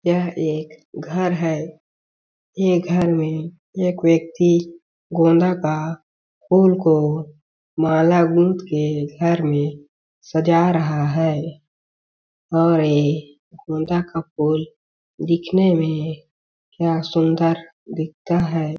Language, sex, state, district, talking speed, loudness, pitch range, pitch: Hindi, male, Chhattisgarh, Balrampur, 100 wpm, -19 LUFS, 155-170 Hz, 165 Hz